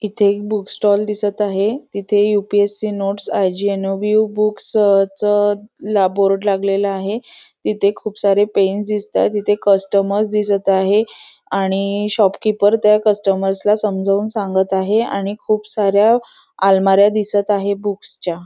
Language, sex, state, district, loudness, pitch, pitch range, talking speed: Marathi, female, Maharashtra, Nagpur, -16 LUFS, 205 Hz, 195-210 Hz, 165 wpm